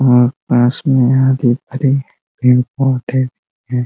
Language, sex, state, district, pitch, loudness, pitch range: Hindi, male, Uttar Pradesh, Ghazipur, 130 Hz, -14 LUFS, 125-135 Hz